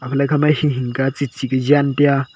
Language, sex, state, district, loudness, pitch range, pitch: Wancho, male, Arunachal Pradesh, Longding, -17 LUFS, 130-145 Hz, 140 Hz